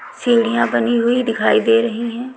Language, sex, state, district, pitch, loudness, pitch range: Hindi, female, Chhattisgarh, Raipur, 235 Hz, -16 LUFS, 225-240 Hz